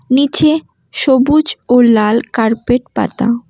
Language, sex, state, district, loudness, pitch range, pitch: Bengali, female, West Bengal, Cooch Behar, -13 LUFS, 235-285 Hz, 245 Hz